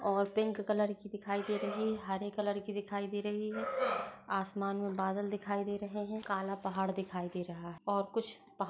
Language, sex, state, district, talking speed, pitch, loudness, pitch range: Hindi, female, Uttarakhand, Uttarkashi, 205 wpm, 200 Hz, -37 LUFS, 195-210 Hz